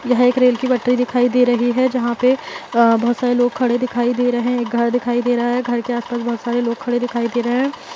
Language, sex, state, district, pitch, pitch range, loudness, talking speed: Hindi, female, Bihar, Kishanganj, 245 Hz, 240-250 Hz, -17 LUFS, 280 wpm